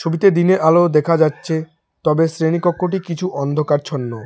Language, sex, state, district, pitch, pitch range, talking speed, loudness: Bengali, male, West Bengal, Alipurduar, 160 Hz, 155-175 Hz, 140 wpm, -17 LUFS